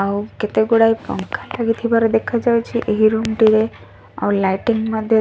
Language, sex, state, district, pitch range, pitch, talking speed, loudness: Odia, female, Odisha, Sambalpur, 215-230 Hz, 220 Hz, 140 wpm, -18 LUFS